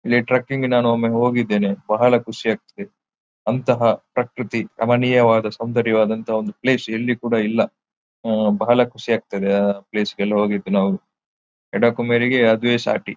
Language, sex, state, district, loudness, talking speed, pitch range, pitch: Kannada, male, Karnataka, Dakshina Kannada, -19 LUFS, 120 wpm, 105-120 Hz, 115 Hz